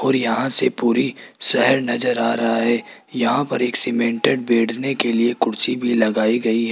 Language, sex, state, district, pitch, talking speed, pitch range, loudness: Hindi, male, Rajasthan, Jaipur, 120 Hz, 185 wpm, 115-125 Hz, -19 LUFS